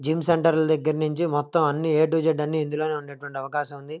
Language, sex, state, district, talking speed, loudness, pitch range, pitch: Telugu, male, Andhra Pradesh, Krishna, 225 wpm, -24 LUFS, 145-160 Hz, 155 Hz